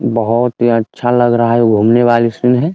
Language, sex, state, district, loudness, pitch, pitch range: Hindi, male, Bihar, Muzaffarpur, -12 LUFS, 120 Hz, 115-120 Hz